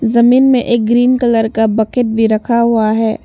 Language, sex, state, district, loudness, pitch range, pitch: Hindi, female, Arunachal Pradesh, Papum Pare, -12 LUFS, 220-245 Hz, 230 Hz